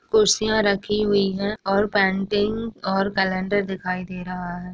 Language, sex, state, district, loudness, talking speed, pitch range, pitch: Hindi, female, Uttar Pradesh, Etah, -22 LUFS, 150 wpm, 190-210 Hz, 195 Hz